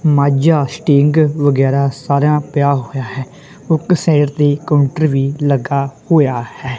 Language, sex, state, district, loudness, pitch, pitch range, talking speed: Punjabi, male, Punjab, Kapurthala, -14 LUFS, 145 Hz, 135-150 Hz, 135 wpm